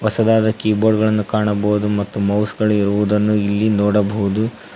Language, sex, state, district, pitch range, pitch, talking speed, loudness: Kannada, male, Karnataka, Koppal, 105-110 Hz, 105 Hz, 115 wpm, -17 LUFS